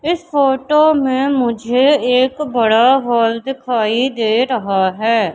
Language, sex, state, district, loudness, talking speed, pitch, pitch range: Hindi, female, Madhya Pradesh, Katni, -15 LUFS, 125 wpm, 255 Hz, 230-270 Hz